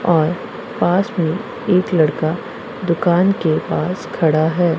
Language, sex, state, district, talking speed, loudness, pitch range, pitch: Hindi, female, Punjab, Pathankot, 125 wpm, -18 LUFS, 160-190 Hz, 175 Hz